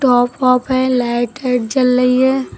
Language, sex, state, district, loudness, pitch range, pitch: Hindi, female, Uttar Pradesh, Lucknow, -15 LUFS, 245-260 Hz, 250 Hz